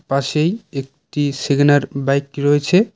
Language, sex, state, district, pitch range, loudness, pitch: Bengali, male, West Bengal, Cooch Behar, 140-150 Hz, -17 LUFS, 145 Hz